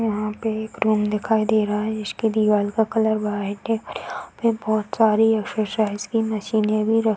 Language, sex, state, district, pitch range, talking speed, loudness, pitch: Hindi, female, Bihar, Darbhanga, 210-220 Hz, 210 wpm, -22 LUFS, 215 Hz